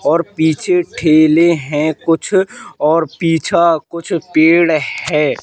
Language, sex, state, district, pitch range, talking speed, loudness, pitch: Hindi, male, Madhya Pradesh, Katni, 155-170 Hz, 110 wpm, -14 LUFS, 165 Hz